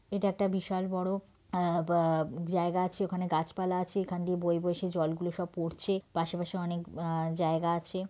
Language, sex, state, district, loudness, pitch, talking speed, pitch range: Bengali, female, West Bengal, Purulia, -32 LUFS, 175 Hz, 175 wpm, 170-185 Hz